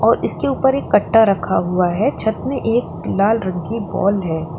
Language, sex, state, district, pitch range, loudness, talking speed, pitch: Hindi, female, Uttar Pradesh, Lalitpur, 180-230 Hz, -18 LUFS, 195 wpm, 210 Hz